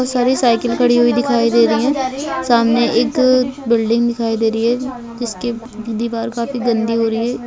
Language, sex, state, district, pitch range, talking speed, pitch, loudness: Hindi, female, Bihar, Begusarai, 230-250 Hz, 185 wpm, 235 Hz, -16 LUFS